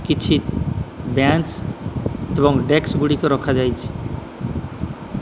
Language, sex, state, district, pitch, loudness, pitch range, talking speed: Odia, male, Odisha, Malkangiri, 140 Hz, -20 LUFS, 130-150 Hz, 70 wpm